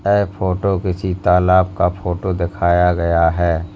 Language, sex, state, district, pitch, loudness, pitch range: Hindi, male, Uttar Pradesh, Lalitpur, 90 Hz, -17 LUFS, 85-95 Hz